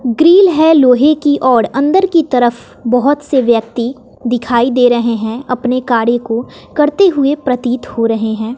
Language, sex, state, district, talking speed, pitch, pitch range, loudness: Hindi, female, Bihar, West Champaran, 170 wpm, 250 Hz, 235-290 Hz, -12 LUFS